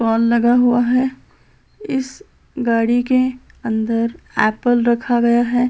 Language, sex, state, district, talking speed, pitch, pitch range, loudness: Hindi, female, Chhattisgarh, Balrampur, 125 wpm, 240 Hz, 230-255 Hz, -17 LUFS